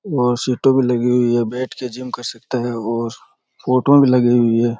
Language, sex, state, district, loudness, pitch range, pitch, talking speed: Rajasthani, male, Rajasthan, Churu, -17 LUFS, 120-130 Hz, 125 Hz, 240 wpm